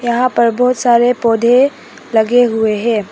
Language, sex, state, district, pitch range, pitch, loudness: Hindi, female, Arunachal Pradesh, Papum Pare, 225-245 Hz, 235 Hz, -13 LUFS